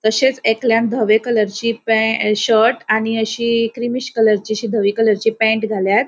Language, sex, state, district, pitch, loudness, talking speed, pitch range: Konkani, female, Goa, North and South Goa, 225 Hz, -16 LUFS, 150 wpm, 215-230 Hz